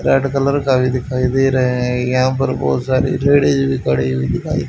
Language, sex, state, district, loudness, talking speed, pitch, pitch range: Hindi, male, Haryana, Jhajjar, -16 LUFS, 215 wpm, 130 Hz, 125-135 Hz